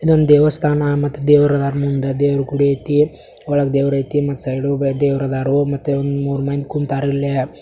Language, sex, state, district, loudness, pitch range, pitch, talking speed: Kannada, male, Karnataka, Belgaum, -17 LUFS, 140-145 Hz, 140 Hz, 180 wpm